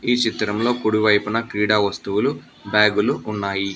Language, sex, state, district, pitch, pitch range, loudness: Telugu, male, Telangana, Hyderabad, 105 Hz, 105-110 Hz, -20 LUFS